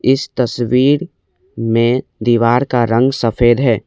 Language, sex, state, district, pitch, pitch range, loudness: Hindi, male, Assam, Kamrup Metropolitan, 120 Hz, 115-130 Hz, -14 LUFS